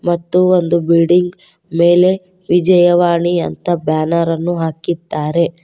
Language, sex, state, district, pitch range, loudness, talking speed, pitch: Kannada, female, Karnataka, Koppal, 170-180 Hz, -14 LUFS, 95 wpm, 175 Hz